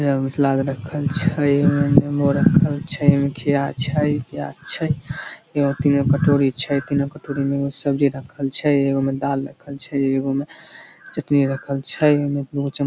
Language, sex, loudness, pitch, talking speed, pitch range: Maithili, male, -20 LUFS, 140 Hz, 205 wpm, 140-145 Hz